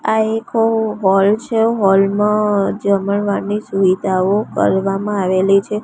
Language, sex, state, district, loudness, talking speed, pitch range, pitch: Gujarati, female, Gujarat, Gandhinagar, -16 LUFS, 115 wpm, 195-215 Hz, 205 Hz